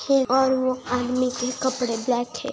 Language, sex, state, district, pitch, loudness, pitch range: Hindi, female, Bihar, Bhagalpur, 255 Hz, -23 LUFS, 245-260 Hz